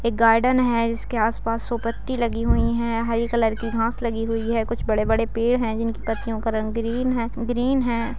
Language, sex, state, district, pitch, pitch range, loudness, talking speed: Hindi, female, Bihar, Jamui, 230 Hz, 225-235 Hz, -23 LUFS, 220 wpm